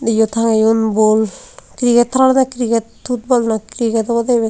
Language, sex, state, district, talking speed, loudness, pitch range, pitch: Chakma, female, Tripura, Unakoti, 160 wpm, -15 LUFS, 225-245 Hz, 230 Hz